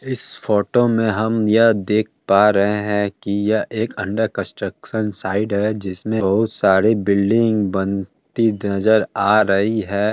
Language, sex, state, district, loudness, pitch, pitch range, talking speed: Hindi, male, Bihar, Kishanganj, -18 LUFS, 105 Hz, 100-110 Hz, 150 wpm